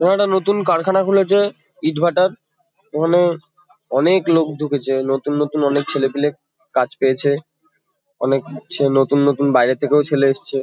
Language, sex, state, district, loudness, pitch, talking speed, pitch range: Bengali, male, West Bengal, Kolkata, -18 LUFS, 150 Hz, 145 wpm, 140-175 Hz